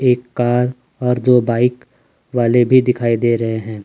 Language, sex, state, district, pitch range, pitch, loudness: Hindi, male, Jharkhand, Ranchi, 115-125 Hz, 125 Hz, -16 LUFS